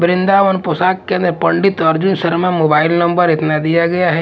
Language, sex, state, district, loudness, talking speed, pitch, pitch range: Hindi, male, Punjab, Fazilka, -14 LUFS, 170 wpm, 175 Hz, 165-185 Hz